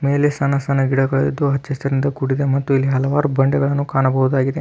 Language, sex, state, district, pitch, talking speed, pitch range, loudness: Kannada, male, Karnataka, Belgaum, 140 Hz, 155 wpm, 135-140 Hz, -18 LUFS